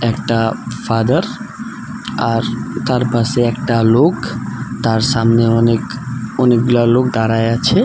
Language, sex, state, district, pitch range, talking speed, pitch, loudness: Bengali, male, West Bengal, Alipurduar, 115-125 Hz, 105 wpm, 120 Hz, -15 LUFS